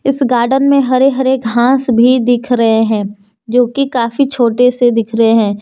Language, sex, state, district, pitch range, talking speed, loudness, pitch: Hindi, female, Jharkhand, Deoghar, 230-260 Hz, 180 wpm, -12 LUFS, 245 Hz